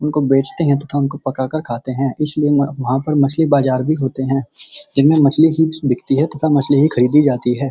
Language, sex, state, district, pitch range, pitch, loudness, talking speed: Hindi, male, Uttar Pradesh, Muzaffarnagar, 135-150 Hz, 140 Hz, -15 LUFS, 210 wpm